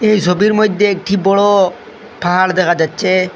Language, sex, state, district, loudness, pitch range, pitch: Bengali, male, Assam, Hailakandi, -13 LUFS, 180-205 Hz, 190 Hz